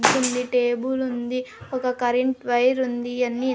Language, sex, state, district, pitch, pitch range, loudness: Telugu, female, Andhra Pradesh, Sri Satya Sai, 250 Hz, 245-260 Hz, -23 LUFS